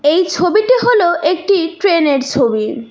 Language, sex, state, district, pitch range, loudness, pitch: Bengali, female, West Bengal, Cooch Behar, 285-385 Hz, -13 LUFS, 340 Hz